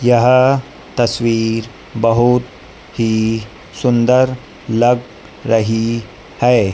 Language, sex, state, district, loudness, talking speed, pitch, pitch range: Hindi, male, Madhya Pradesh, Dhar, -15 LUFS, 70 wpm, 115 Hz, 110-125 Hz